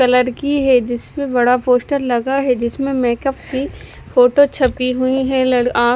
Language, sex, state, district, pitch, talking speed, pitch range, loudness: Hindi, female, Punjab, Fazilka, 255 Hz, 170 wpm, 245-275 Hz, -16 LUFS